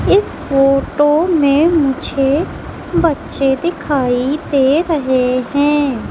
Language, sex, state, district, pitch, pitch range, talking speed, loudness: Hindi, female, Madhya Pradesh, Umaria, 285 Hz, 270-305 Hz, 90 wpm, -15 LUFS